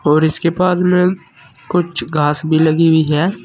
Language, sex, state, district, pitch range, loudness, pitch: Hindi, male, Uttar Pradesh, Saharanpur, 155-180 Hz, -15 LUFS, 160 Hz